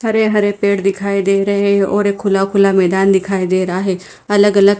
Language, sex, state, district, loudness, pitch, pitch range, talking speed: Hindi, female, Punjab, Fazilka, -14 LUFS, 200 Hz, 195-200 Hz, 225 wpm